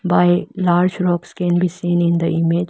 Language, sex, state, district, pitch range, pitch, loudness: English, female, Arunachal Pradesh, Lower Dibang Valley, 170-180 Hz, 175 Hz, -17 LUFS